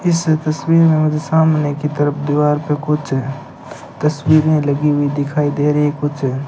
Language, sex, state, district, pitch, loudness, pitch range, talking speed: Hindi, male, Rajasthan, Bikaner, 150 Hz, -16 LUFS, 145-155 Hz, 175 wpm